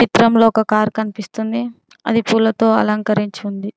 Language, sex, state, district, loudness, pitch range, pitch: Telugu, female, Telangana, Mahabubabad, -16 LUFS, 210-230 Hz, 220 Hz